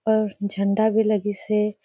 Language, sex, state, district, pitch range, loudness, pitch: Surgujia, female, Chhattisgarh, Sarguja, 205-220 Hz, -22 LUFS, 210 Hz